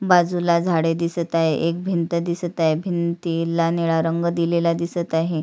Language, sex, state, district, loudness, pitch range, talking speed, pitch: Marathi, female, Maharashtra, Sindhudurg, -21 LUFS, 165-170 Hz, 155 wpm, 170 Hz